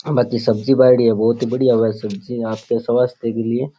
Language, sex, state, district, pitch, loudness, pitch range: Rajasthani, male, Rajasthan, Churu, 120 Hz, -17 LUFS, 115-125 Hz